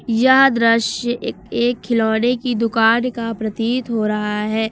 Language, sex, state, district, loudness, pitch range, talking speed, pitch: Hindi, female, Uttar Pradesh, Lucknow, -17 LUFS, 220-245 Hz, 140 wpm, 230 Hz